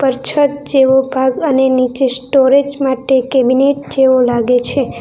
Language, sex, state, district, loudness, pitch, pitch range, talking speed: Gujarati, female, Gujarat, Valsad, -13 LUFS, 265 Hz, 255-275 Hz, 145 wpm